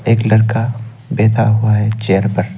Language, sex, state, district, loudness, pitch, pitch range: Hindi, male, Arunachal Pradesh, Longding, -14 LUFS, 110 Hz, 105-115 Hz